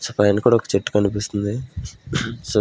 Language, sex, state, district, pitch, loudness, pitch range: Telugu, male, Andhra Pradesh, Sri Satya Sai, 105 Hz, -21 LUFS, 100-115 Hz